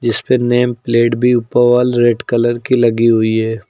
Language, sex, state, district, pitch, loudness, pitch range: Hindi, male, Uttar Pradesh, Lucknow, 120 Hz, -13 LUFS, 115-120 Hz